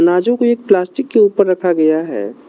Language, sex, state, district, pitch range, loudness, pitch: Hindi, male, Arunachal Pradesh, Lower Dibang Valley, 165-235 Hz, -14 LUFS, 185 Hz